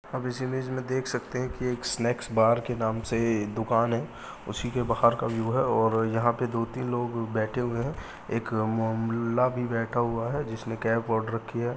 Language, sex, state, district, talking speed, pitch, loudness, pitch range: Hindi, male, Uttar Pradesh, Muzaffarnagar, 220 wpm, 115 Hz, -28 LUFS, 115-125 Hz